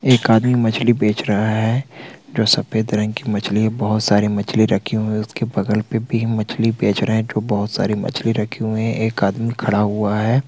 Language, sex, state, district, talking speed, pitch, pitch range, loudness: Hindi, male, Bihar, Vaishali, 220 wpm, 110 Hz, 105-115 Hz, -18 LUFS